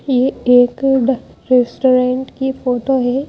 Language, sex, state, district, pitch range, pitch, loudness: Hindi, female, Madhya Pradesh, Bhopal, 250-265 Hz, 255 Hz, -15 LUFS